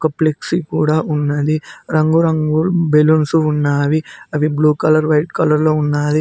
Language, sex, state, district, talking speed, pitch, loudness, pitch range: Telugu, male, Telangana, Mahabubabad, 135 wpm, 155 Hz, -15 LUFS, 150-155 Hz